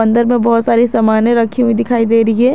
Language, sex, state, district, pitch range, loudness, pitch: Hindi, female, Jharkhand, Garhwa, 225-240 Hz, -12 LUFS, 230 Hz